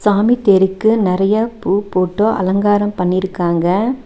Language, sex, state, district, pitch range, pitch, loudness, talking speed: Tamil, female, Tamil Nadu, Nilgiris, 185-215 Hz, 200 Hz, -15 LUFS, 105 wpm